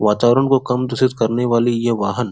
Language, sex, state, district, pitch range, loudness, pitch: Hindi, male, Bihar, Supaul, 115-125 Hz, -17 LUFS, 120 Hz